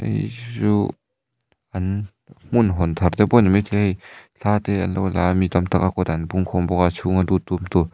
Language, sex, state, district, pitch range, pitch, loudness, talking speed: Mizo, male, Mizoram, Aizawl, 90-105 Hz, 95 Hz, -20 LUFS, 240 wpm